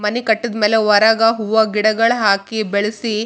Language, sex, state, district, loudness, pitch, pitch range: Kannada, female, Karnataka, Raichur, -15 LUFS, 220 Hz, 210-225 Hz